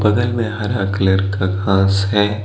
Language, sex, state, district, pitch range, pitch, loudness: Hindi, male, Jharkhand, Deoghar, 95-105 Hz, 100 Hz, -17 LUFS